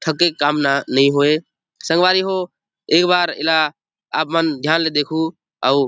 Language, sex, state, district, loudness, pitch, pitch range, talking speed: Chhattisgarhi, male, Chhattisgarh, Rajnandgaon, -17 LUFS, 160 Hz, 145-175 Hz, 165 wpm